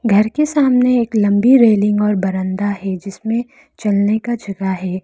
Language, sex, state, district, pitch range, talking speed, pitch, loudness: Hindi, female, Arunachal Pradesh, Lower Dibang Valley, 195-240 Hz, 165 wpm, 210 Hz, -16 LUFS